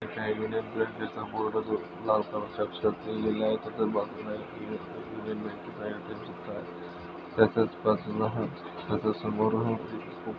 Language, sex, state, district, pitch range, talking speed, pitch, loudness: Marathi, male, Maharashtra, Nagpur, 90-110 Hz, 135 wpm, 110 Hz, -31 LUFS